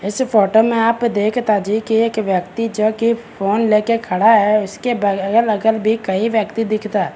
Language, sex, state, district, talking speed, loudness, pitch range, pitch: Hindi, male, Bihar, Begusarai, 185 wpm, -16 LUFS, 205-230 Hz, 220 Hz